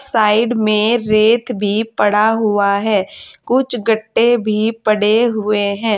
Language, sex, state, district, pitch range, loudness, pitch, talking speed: Hindi, female, Uttar Pradesh, Saharanpur, 210-230 Hz, -15 LUFS, 220 Hz, 130 wpm